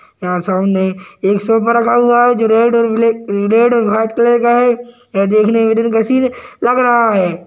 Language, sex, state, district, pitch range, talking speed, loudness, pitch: Hindi, male, Uttarakhand, Tehri Garhwal, 200-240 Hz, 195 wpm, -13 LUFS, 230 Hz